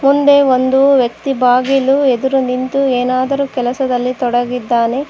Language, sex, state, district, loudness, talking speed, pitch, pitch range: Kannada, female, Karnataka, Koppal, -13 LUFS, 105 wpm, 255 Hz, 250-275 Hz